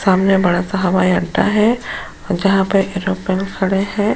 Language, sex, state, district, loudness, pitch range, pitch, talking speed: Hindi, female, Uttar Pradesh, Jyotiba Phule Nagar, -16 LUFS, 185-195 Hz, 195 Hz, 200 wpm